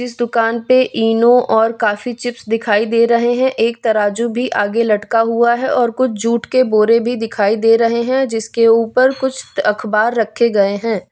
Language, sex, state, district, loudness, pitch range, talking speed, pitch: Hindi, female, Bihar, West Champaran, -15 LUFS, 220-240 Hz, 190 wpm, 230 Hz